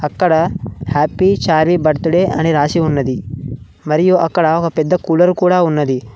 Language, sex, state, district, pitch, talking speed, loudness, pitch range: Telugu, male, Telangana, Mahabubabad, 160 Hz, 135 wpm, -14 LUFS, 145-175 Hz